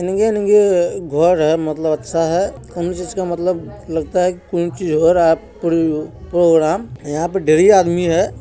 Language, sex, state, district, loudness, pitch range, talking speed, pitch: Maithili, male, Bihar, Supaul, -16 LUFS, 160-180 Hz, 170 wpm, 170 Hz